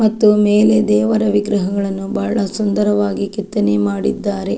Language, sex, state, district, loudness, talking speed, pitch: Kannada, female, Karnataka, Dakshina Kannada, -16 LUFS, 105 wpm, 200 Hz